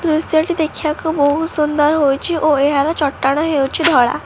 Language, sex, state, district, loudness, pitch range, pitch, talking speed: Odia, female, Odisha, Khordha, -16 LUFS, 285-320 Hz, 305 Hz, 155 wpm